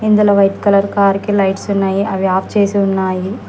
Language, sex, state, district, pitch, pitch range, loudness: Telugu, female, Telangana, Hyderabad, 200 Hz, 195-205 Hz, -14 LUFS